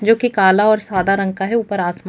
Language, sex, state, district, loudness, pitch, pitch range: Hindi, female, Chhattisgarh, Kabirdham, -16 LUFS, 195 Hz, 190-215 Hz